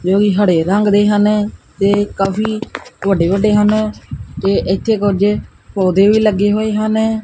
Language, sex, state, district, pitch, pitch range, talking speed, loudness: Punjabi, male, Punjab, Kapurthala, 205 Hz, 195-215 Hz, 165 wpm, -14 LUFS